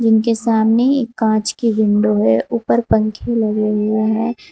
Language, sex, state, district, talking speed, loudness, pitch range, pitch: Hindi, female, Uttar Pradesh, Saharanpur, 160 wpm, -16 LUFS, 215-230 Hz, 220 Hz